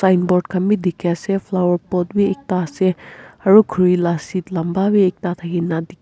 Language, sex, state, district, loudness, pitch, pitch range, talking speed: Nagamese, female, Nagaland, Kohima, -18 LUFS, 180 Hz, 175-195 Hz, 180 wpm